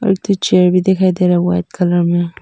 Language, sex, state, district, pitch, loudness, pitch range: Hindi, female, Arunachal Pradesh, Papum Pare, 180 Hz, -14 LUFS, 175-190 Hz